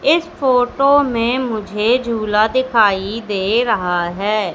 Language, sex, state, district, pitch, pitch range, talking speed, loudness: Hindi, female, Madhya Pradesh, Katni, 225 Hz, 210-255 Hz, 120 wpm, -16 LUFS